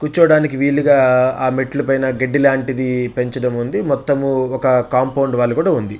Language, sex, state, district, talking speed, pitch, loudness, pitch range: Telugu, male, Andhra Pradesh, Chittoor, 150 wpm, 130 Hz, -16 LUFS, 125-140 Hz